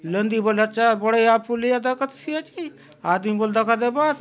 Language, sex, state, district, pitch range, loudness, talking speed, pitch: Halbi, male, Chhattisgarh, Bastar, 220-260 Hz, -21 LUFS, 170 wpm, 230 Hz